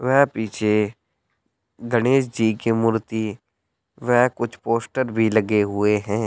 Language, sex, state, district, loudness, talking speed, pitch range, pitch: Hindi, male, Uttar Pradesh, Saharanpur, -21 LUFS, 125 wpm, 105-120 Hz, 110 Hz